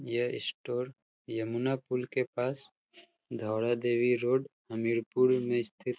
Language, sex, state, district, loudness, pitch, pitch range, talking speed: Hindi, male, Uttar Pradesh, Hamirpur, -31 LUFS, 125 Hz, 120-130 Hz, 130 wpm